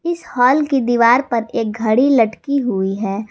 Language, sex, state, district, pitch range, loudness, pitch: Hindi, female, Jharkhand, Garhwa, 220-275 Hz, -16 LUFS, 240 Hz